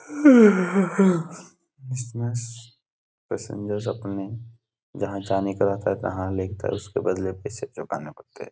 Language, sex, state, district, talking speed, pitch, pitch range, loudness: Hindi, male, Uttar Pradesh, Etah, 105 wpm, 115 Hz, 100-160 Hz, -23 LUFS